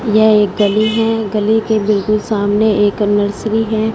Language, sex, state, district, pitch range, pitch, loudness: Hindi, female, Punjab, Fazilka, 205-220 Hz, 215 Hz, -14 LUFS